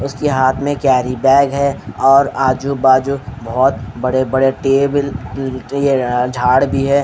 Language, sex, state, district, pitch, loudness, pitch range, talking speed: Hindi, male, Haryana, Rohtak, 135 Hz, -15 LUFS, 125-140 Hz, 135 wpm